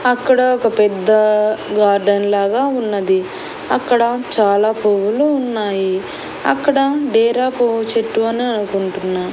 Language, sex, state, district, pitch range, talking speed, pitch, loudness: Telugu, female, Andhra Pradesh, Annamaya, 205-245 Hz, 105 wpm, 220 Hz, -16 LUFS